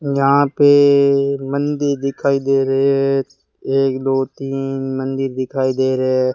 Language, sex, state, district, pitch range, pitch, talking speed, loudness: Hindi, male, Rajasthan, Bikaner, 135-140 Hz, 135 Hz, 140 wpm, -17 LUFS